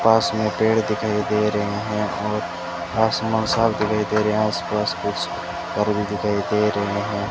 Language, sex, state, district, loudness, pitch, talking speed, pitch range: Hindi, male, Rajasthan, Bikaner, -22 LUFS, 105 Hz, 170 wpm, 105-110 Hz